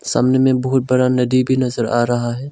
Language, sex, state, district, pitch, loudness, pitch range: Hindi, male, Arunachal Pradesh, Longding, 130 Hz, -16 LUFS, 120-130 Hz